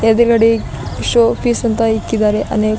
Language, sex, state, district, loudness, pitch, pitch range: Kannada, female, Karnataka, Bidar, -14 LUFS, 225 Hz, 220-230 Hz